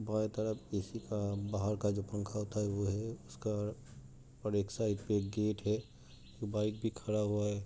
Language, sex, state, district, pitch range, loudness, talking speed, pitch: Hindi, male, Uttar Pradesh, Jalaun, 105-110 Hz, -37 LUFS, 195 wpm, 105 Hz